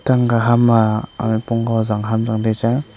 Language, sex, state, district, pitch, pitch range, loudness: Wancho, male, Arunachal Pradesh, Longding, 115 Hz, 110-120 Hz, -17 LUFS